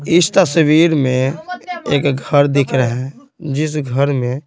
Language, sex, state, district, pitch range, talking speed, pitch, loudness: Hindi, male, Bihar, Patna, 135-165 Hz, 145 wpm, 145 Hz, -15 LUFS